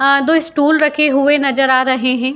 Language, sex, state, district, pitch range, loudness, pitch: Hindi, female, Uttar Pradesh, Jyotiba Phule Nagar, 260-300 Hz, -13 LUFS, 275 Hz